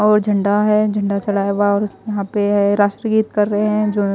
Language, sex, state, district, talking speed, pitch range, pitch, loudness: Hindi, female, Chhattisgarh, Raipur, 175 wpm, 200-210 Hz, 205 Hz, -17 LUFS